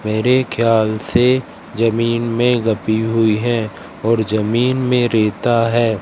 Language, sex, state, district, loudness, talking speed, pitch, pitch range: Hindi, female, Madhya Pradesh, Katni, -16 LUFS, 130 wpm, 115 Hz, 110-120 Hz